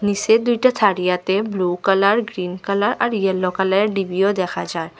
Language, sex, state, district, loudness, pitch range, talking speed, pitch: Bengali, female, Assam, Hailakandi, -19 LUFS, 185-210 Hz, 170 wpm, 195 Hz